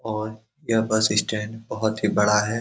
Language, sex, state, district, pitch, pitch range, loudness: Hindi, male, Bihar, Saran, 110 Hz, 105-110 Hz, -23 LUFS